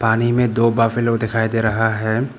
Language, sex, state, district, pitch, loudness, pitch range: Hindi, male, Arunachal Pradesh, Papum Pare, 115 Hz, -18 LUFS, 110-115 Hz